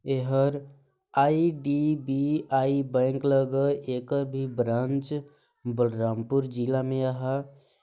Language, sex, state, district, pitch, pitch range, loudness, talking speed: Chhattisgarhi, male, Chhattisgarh, Balrampur, 135 Hz, 130-140 Hz, -27 LUFS, 90 wpm